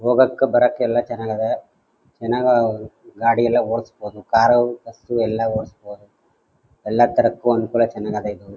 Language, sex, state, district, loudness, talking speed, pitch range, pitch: Kannada, male, Karnataka, Chamarajanagar, -19 LUFS, 125 wpm, 110-120 Hz, 115 Hz